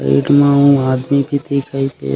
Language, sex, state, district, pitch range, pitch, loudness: Chhattisgarhi, male, Chhattisgarh, Raigarh, 130-140 Hz, 140 Hz, -14 LUFS